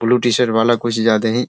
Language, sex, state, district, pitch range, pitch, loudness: Hindi, male, Bihar, Sitamarhi, 115-120 Hz, 120 Hz, -16 LUFS